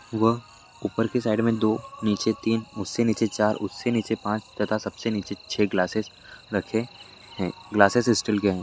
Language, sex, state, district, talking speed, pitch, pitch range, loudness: Hindi, male, Maharashtra, Chandrapur, 175 wpm, 110 Hz, 100-115 Hz, -25 LUFS